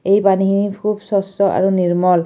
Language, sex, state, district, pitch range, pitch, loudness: Assamese, female, Assam, Kamrup Metropolitan, 185-200 Hz, 195 Hz, -16 LUFS